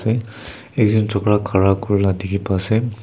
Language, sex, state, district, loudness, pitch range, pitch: Nagamese, male, Nagaland, Kohima, -18 LUFS, 95-110 Hz, 105 Hz